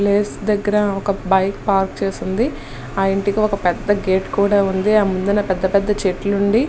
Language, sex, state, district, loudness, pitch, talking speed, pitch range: Telugu, female, Andhra Pradesh, Srikakulam, -18 LUFS, 200 Hz, 180 wpm, 195-205 Hz